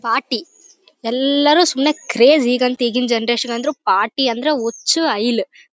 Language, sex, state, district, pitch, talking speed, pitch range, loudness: Kannada, female, Karnataka, Bellary, 265 Hz, 135 wpm, 240-305 Hz, -16 LUFS